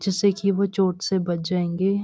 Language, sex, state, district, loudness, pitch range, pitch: Hindi, female, Uttarakhand, Uttarkashi, -23 LUFS, 180-200 Hz, 190 Hz